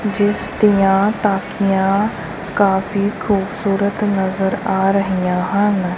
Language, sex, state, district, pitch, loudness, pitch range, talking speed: Punjabi, female, Punjab, Kapurthala, 200 Hz, -17 LUFS, 190-205 Hz, 90 wpm